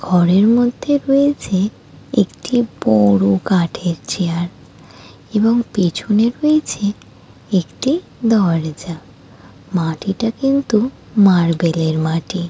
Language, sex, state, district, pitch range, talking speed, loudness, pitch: Bengali, female, West Bengal, Jalpaiguri, 170-235 Hz, 65 wpm, -17 LUFS, 195 Hz